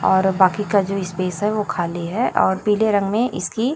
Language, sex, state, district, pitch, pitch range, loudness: Hindi, female, Chhattisgarh, Raipur, 200 Hz, 185-215 Hz, -19 LUFS